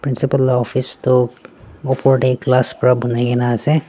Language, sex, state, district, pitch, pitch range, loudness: Nagamese, female, Nagaland, Dimapur, 130 Hz, 125-135 Hz, -16 LUFS